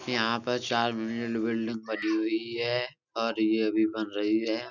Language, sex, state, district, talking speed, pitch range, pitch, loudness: Hindi, male, Uttar Pradesh, Budaun, 155 wpm, 110-120 Hz, 115 Hz, -29 LUFS